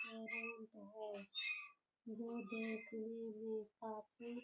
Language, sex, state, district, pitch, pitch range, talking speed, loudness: Hindi, female, Bihar, Purnia, 225 Hz, 220-235 Hz, 110 wpm, -47 LUFS